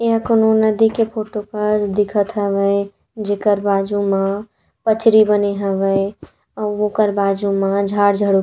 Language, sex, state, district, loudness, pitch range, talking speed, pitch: Chhattisgarhi, female, Chhattisgarh, Rajnandgaon, -17 LUFS, 200-215 Hz, 140 wpm, 205 Hz